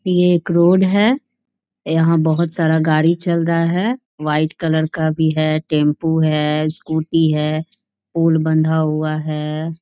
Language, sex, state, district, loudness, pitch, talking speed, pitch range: Hindi, female, Bihar, Jahanabad, -17 LUFS, 160 Hz, 145 wpm, 155-170 Hz